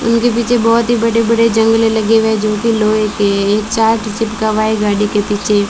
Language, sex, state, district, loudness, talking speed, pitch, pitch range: Hindi, female, Rajasthan, Bikaner, -13 LUFS, 230 wpm, 220 Hz, 210-230 Hz